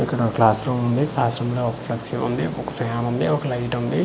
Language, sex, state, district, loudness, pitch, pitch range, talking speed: Telugu, male, Andhra Pradesh, Manyam, -22 LUFS, 120 Hz, 120-125 Hz, 235 wpm